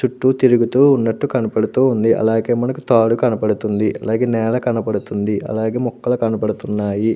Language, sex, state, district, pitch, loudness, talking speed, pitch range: Telugu, male, Andhra Pradesh, Anantapur, 115 Hz, -17 LUFS, 115 wpm, 110-125 Hz